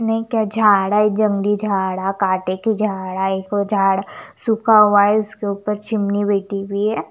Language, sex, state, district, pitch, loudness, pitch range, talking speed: Hindi, female, Chandigarh, Chandigarh, 205 Hz, -18 LUFS, 195-215 Hz, 175 wpm